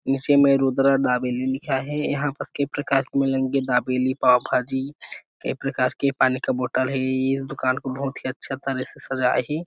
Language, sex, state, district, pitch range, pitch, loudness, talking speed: Chhattisgarhi, male, Chhattisgarh, Sarguja, 130-135 Hz, 135 Hz, -23 LUFS, 200 wpm